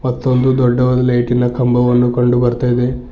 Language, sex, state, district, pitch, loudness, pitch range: Kannada, male, Karnataka, Bidar, 125 Hz, -14 LUFS, 120-125 Hz